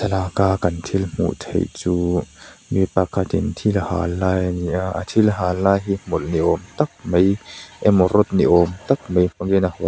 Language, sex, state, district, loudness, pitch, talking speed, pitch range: Mizo, male, Mizoram, Aizawl, -20 LUFS, 95 Hz, 220 wpm, 90-100 Hz